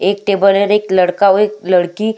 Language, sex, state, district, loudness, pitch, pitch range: Hindi, female, Chhattisgarh, Sukma, -13 LUFS, 200 Hz, 190-210 Hz